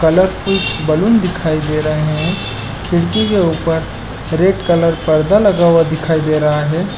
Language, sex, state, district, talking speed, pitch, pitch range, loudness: Hindi, male, Chhattisgarh, Balrampur, 165 wpm, 160 Hz, 155-180 Hz, -14 LUFS